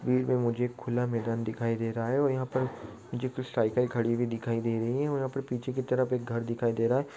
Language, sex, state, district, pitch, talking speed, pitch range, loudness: Maithili, male, Bihar, Supaul, 120 Hz, 285 wpm, 115-130 Hz, -30 LUFS